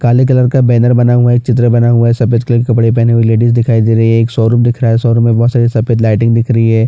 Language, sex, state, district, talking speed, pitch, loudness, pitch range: Hindi, male, Chhattisgarh, Bastar, 305 wpm, 120 Hz, -10 LUFS, 115-120 Hz